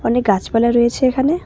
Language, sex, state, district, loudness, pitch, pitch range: Bengali, female, West Bengal, Cooch Behar, -16 LUFS, 235 Hz, 230-260 Hz